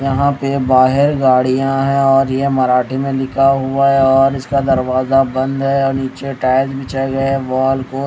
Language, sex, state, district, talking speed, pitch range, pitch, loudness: Hindi, male, Odisha, Khordha, 185 wpm, 130-135 Hz, 135 Hz, -14 LUFS